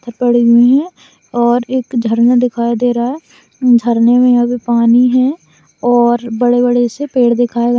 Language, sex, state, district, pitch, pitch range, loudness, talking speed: Hindi, female, Maharashtra, Sindhudurg, 245 Hz, 235-250 Hz, -12 LUFS, 130 wpm